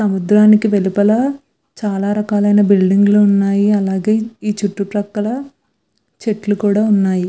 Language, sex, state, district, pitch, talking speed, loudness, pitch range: Telugu, female, Andhra Pradesh, Visakhapatnam, 205 Hz, 105 wpm, -15 LUFS, 200-215 Hz